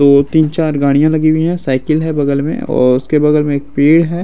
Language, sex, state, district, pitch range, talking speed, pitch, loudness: Hindi, male, Bihar, Araria, 140-160 Hz, 255 wpm, 150 Hz, -13 LUFS